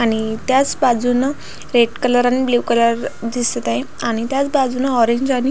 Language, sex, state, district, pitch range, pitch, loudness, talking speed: Marathi, female, Maharashtra, Pune, 230-260 Hz, 245 Hz, -17 LUFS, 165 wpm